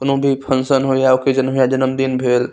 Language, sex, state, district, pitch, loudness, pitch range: Maithili, male, Bihar, Saharsa, 135 Hz, -16 LUFS, 130-135 Hz